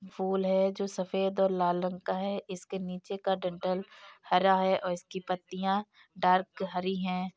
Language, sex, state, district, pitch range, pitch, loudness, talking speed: Hindi, female, Uttar Pradesh, Jyotiba Phule Nagar, 185-195 Hz, 190 Hz, -31 LUFS, 170 wpm